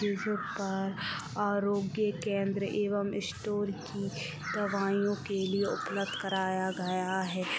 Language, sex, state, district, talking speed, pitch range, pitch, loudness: Hindi, female, Jharkhand, Sahebganj, 110 wpm, 190-205 Hz, 195 Hz, -32 LUFS